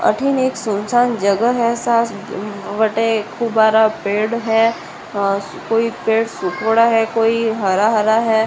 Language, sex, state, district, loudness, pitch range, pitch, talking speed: Rajasthani, female, Rajasthan, Nagaur, -17 LUFS, 215-230 Hz, 225 Hz, 130 wpm